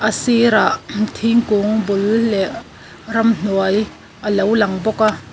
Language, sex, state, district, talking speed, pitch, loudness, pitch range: Mizo, female, Mizoram, Aizawl, 125 wpm, 215 Hz, -17 LUFS, 200-225 Hz